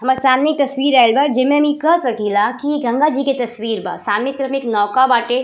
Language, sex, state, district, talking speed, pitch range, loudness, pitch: Bhojpuri, female, Uttar Pradesh, Ghazipur, 265 wpm, 235-280 Hz, -16 LUFS, 260 Hz